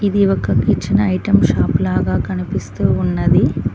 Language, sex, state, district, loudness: Telugu, female, Telangana, Mahabubabad, -16 LUFS